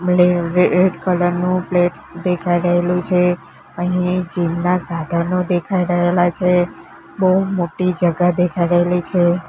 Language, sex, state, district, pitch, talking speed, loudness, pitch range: Gujarati, female, Gujarat, Gandhinagar, 180 Hz, 125 wpm, -17 LUFS, 175-180 Hz